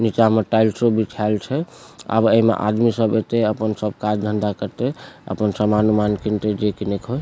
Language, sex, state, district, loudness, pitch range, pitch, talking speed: Maithili, male, Bihar, Supaul, -20 LUFS, 105-115 Hz, 110 Hz, 190 wpm